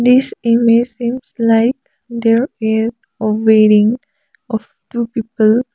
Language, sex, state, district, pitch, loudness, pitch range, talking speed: English, female, Sikkim, Gangtok, 230 Hz, -15 LUFS, 220-245 Hz, 115 wpm